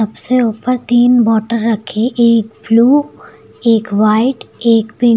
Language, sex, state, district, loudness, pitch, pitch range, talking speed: Hindi, female, Uttar Pradesh, Lucknow, -13 LUFS, 230 Hz, 220-240 Hz, 140 wpm